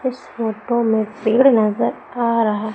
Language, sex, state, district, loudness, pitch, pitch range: Hindi, female, Madhya Pradesh, Umaria, -18 LUFS, 225 Hz, 215-240 Hz